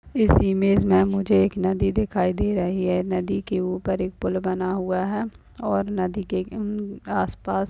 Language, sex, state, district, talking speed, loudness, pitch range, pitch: Hindi, female, Maharashtra, Dhule, 180 wpm, -23 LUFS, 185-205 Hz, 190 Hz